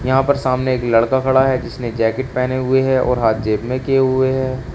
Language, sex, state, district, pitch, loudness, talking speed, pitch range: Hindi, male, Uttar Pradesh, Shamli, 130 Hz, -17 LUFS, 240 wpm, 125-130 Hz